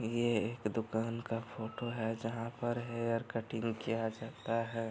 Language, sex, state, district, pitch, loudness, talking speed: Hindi, male, Bihar, Araria, 115 Hz, -37 LUFS, 160 wpm